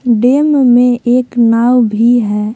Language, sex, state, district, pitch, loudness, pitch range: Hindi, female, Jharkhand, Palamu, 245 Hz, -10 LUFS, 230-250 Hz